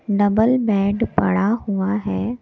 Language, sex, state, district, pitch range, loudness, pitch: Hindi, female, Delhi, New Delhi, 200-225 Hz, -19 LUFS, 205 Hz